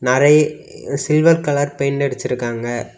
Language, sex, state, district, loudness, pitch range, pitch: Tamil, male, Tamil Nadu, Kanyakumari, -17 LUFS, 125-150 Hz, 140 Hz